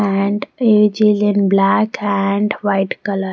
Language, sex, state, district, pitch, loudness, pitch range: English, female, Punjab, Pathankot, 205 Hz, -15 LUFS, 195-210 Hz